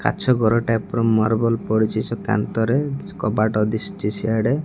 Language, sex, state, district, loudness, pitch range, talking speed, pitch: Odia, male, Odisha, Malkangiri, -21 LUFS, 110-115 Hz, 140 wpm, 110 Hz